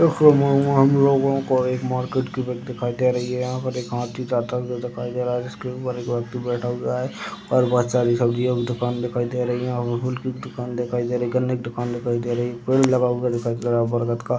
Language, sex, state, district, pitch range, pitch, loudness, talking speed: Hindi, male, Uttar Pradesh, Deoria, 120-125 Hz, 125 Hz, -22 LUFS, 260 wpm